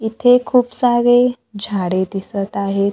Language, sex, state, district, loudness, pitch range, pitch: Marathi, female, Maharashtra, Gondia, -16 LUFS, 195-245 Hz, 215 Hz